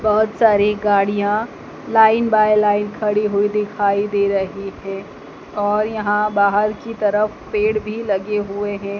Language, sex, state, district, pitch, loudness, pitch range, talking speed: Hindi, female, Madhya Pradesh, Dhar, 210 Hz, -18 LUFS, 205-215 Hz, 145 wpm